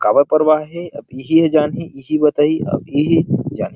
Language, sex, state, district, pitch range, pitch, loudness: Chhattisgarhi, male, Chhattisgarh, Rajnandgaon, 145-165 Hz, 155 Hz, -16 LUFS